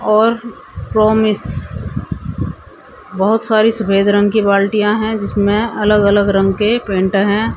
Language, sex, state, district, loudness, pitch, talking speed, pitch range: Hindi, female, Haryana, Jhajjar, -14 LUFS, 210 Hz, 125 wpm, 200-220 Hz